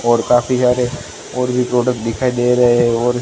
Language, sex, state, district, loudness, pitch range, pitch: Hindi, male, Gujarat, Gandhinagar, -15 LUFS, 120-125 Hz, 125 Hz